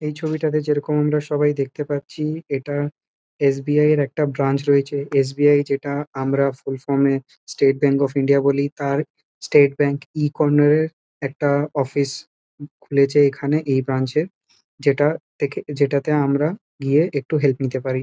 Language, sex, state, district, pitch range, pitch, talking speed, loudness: Bengali, male, West Bengal, Kolkata, 140-150 Hz, 145 Hz, 150 wpm, -20 LUFS